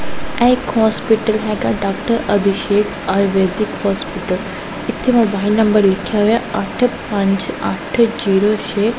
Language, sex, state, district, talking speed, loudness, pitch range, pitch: Punjabi, female, Punjab, Pathankot, 125 wpm, -16 LUFS, 200-230 Hz, 215 Hz